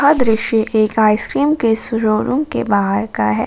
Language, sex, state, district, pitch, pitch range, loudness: Hindi, female, Jharkhand, Ranchi, 220 Hz, 215-240 Hz, -16 LUFS